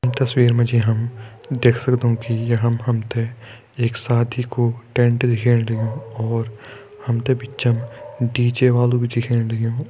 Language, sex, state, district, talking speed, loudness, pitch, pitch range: Hindi, male, Uttarakhand, Tehri Garhwal, 160 wpm, -20 LUFS, 120 Hz, 115-125 Hz